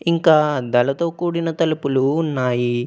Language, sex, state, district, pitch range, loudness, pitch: Telugu, male, Telangana, Komaram Bheem, 130-165 Hz, -19 LUFS, 150 Hz